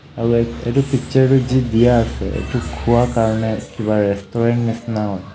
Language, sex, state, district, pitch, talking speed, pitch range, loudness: Assamese, male, Assam, Kamrup Metropolitan, 115 Hz, 155 wpm, 110-120 Hz, -18 LUFS